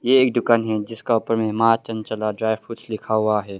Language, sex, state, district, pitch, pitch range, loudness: Hindi, male, Arunachal Pradesh, Longding, 110 Hz, 110-115 Hz, -21 LUFS